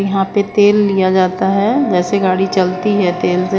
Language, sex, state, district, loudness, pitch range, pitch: Hindi, female, Chandigarh, Chandigarh, -14 LUFS, 185-205 Hz, 195 Hz